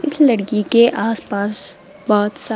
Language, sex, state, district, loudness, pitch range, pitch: Hindi, female, Rajasthan, Jaipur, -17 LUFS, 205-235 Hz, 215 Hz